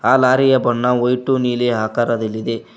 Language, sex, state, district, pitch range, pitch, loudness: Kannada, male, Karnataka, Koppal, 115-125 Hz, 120 Hz, -17 LUFS